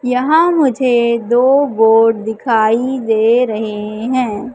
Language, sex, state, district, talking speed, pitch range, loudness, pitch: Hindi, female, Madhya Pradesh, Katni, 105 wpm, 220-255 Hz, -13 LUFS, 235 Hz